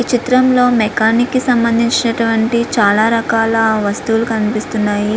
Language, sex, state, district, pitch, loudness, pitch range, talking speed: Telugu, female, Andhra Pradesh, Visakhapatnam, 225 Hz, -14 LUFS, 220-240 Hz, 105 wpm